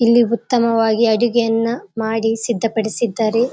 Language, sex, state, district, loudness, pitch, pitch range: Kannada, female, Karnataka, Raichur, -17 LUFS, 230 Hz, 225-235 Hz